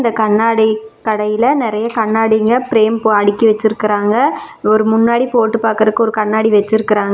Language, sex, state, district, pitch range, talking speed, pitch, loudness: Tamil, female, Tamil Nadu, Namakkal, 215-225 Hz, 125 wpm, 220 Hz, -13 LUFS